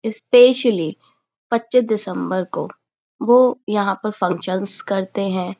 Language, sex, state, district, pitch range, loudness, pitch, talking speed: Hindi, female, Uttar Pradesh, Budaun, 190-245 Hz, -18 LUFS, 215 Hz, 105 wpm